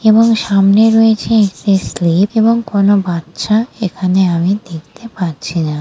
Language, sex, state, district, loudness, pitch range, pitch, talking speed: Bengali, female, West Bengal, Dakshin Dinajpur, -13 LUFS, 175-220 Hz, 200 Hz, 145 wpm